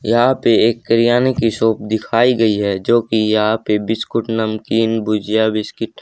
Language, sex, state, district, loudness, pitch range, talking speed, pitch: Hindi, male, Haryana, Rohtak, -16 LUFS, 110-115 Hz, 170 wpm, 110 Hz